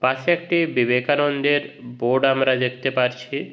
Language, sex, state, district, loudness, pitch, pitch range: Bengali, male, West Bengal, Jhargram, -20 LUFS, 135 Hz, 125-145 Hz